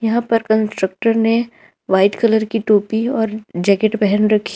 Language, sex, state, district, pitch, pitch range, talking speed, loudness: Hindi, female, Jharkhand, Ranchi, 220 Hz, 205-225 Hz, 145 wpm, -16 LUFS